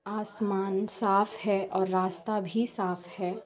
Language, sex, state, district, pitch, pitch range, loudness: Hindi, female, Chhattisgarh, Bilaspur, 195 Hz, 190-210 Hz, -29 LUFS